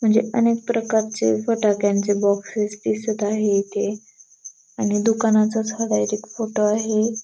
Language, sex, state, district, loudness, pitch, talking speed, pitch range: Marathi, female, Maharashtra, Dhule, -21 LUFS, 215 Hz, 115 wpm, 205-225 Hz